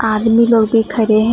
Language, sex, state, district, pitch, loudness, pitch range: Hindi, female, West Bengal, Alipurduar, 225 Hz, -13 LUFS, 220-230 Hz